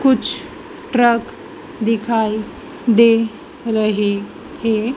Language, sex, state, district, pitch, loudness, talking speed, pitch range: Hindi, female, Madhya Pradesh, Dhar, 230 Hz, -17 LUFS, 75 wpm, 220-260 Hz